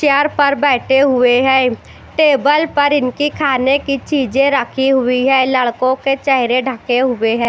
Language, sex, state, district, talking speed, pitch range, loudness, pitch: Hindi, female, Chandigarh, Chandigarh, 160 wpm, 255-285 Hz, -14 LUFS, 270 Hz